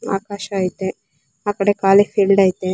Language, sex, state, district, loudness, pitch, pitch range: Kannada, female, Karnataka, Belgaum, -18 LUFS, 195 Hz, 185-200 Hz